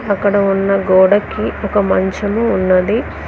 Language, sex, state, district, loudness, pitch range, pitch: Telugu, female, Telangana, Mahabubabad, -14 LUFS, 190-205 Hz, 200 Hz